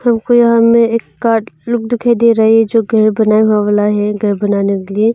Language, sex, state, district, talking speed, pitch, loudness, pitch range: Hindi, female, Arunachal Pradesh, Longding, 235 wpm, 225 Hz, -12 LUFS, 210-235 Hz